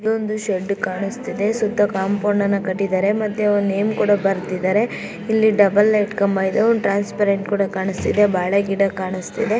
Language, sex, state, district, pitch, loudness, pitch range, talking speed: Kannada, female, Karnataka, Chamarajanagar, 200 Hz, -19 LUFS, 195-210 Hz, 150 wpm